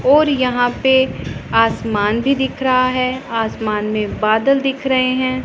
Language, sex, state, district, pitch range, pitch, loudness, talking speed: Hindi, female, Punjab, Pathankot, 225-265 Hz, 255 Hz, -16 LUFS, 155 wpm